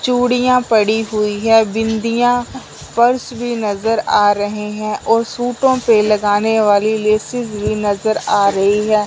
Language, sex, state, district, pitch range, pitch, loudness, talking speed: Hindi, male, Punjab, Fazilka, 210-240 Hz, 220 Hz, -15 LUFS, 145 wpm